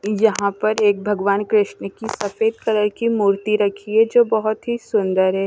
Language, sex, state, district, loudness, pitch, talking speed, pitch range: Hindi, female, Odisha, Nuapada, -19 LUFS, 210 Hz, 185 wpm, 200-220 Hz